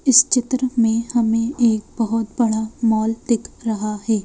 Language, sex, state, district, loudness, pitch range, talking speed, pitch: Hindi, female, Madhya Pradesh, Bhopal, -19 LUFS, 220-245 Hz, 155 wpm, 230 Hz